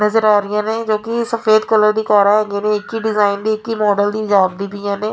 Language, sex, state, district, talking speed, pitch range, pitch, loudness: Punjabi, female, Punjab, Fazilka, 270 wpm, 205-220 Hz, 210 Hz, -16 LUFS